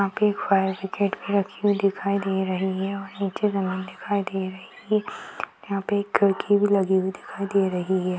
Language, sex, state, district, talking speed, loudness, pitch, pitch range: Hindi, female, Bihar, Madhepura, 225 wpm, -24 LUFS, 195 Hz, 190-200 Hz